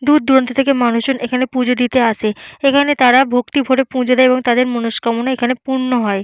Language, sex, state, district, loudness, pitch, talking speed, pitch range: Bengali, female, West Bengal, Purulia, -15 LUFS, 255 Hz, 190 wpm, 245-265 Hz